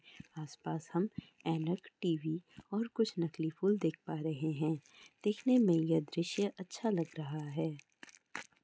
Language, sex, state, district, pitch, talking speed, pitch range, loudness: Maithili, female, Bihar, Araria, 165 Hz, 145 wpm, 160-195 Hz, -36 LUFS